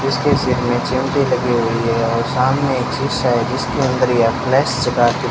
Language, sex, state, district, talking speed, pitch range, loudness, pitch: Hindi, male, Rajasthan, Bikaner, 180 wpm, 120-135 Hz, -17 LUFS, 125 Hz